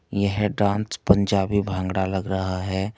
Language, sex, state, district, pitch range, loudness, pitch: Hindi, male, Uttar Pradesh, Saharanpur, 95-100 Hz, -23 LUFS, 100 Hz